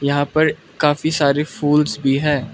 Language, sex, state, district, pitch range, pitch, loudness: Hindi, male, Arunachal Pradesh, Lower Dibang Valley, 140-150 Hz, 150 Hz, -18 LUFS